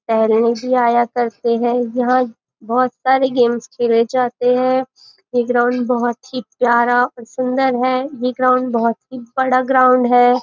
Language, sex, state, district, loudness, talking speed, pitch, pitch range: Hindi, female, Maharashtra, Nagpur, -16 LUFS, 155 wpm, 245 Hz, 240-255 Hz